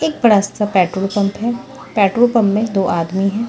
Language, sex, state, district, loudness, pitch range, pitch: Hindi, female, Punjab, Pathankot, -16 LUFS, 195-230 Hz, 205 Hz